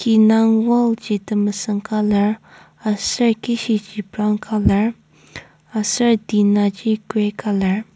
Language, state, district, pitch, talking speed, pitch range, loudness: Ao, Nagaland, Kohima, 215 Hz, 120 wpm, 205-225 Hz, -18 LUFS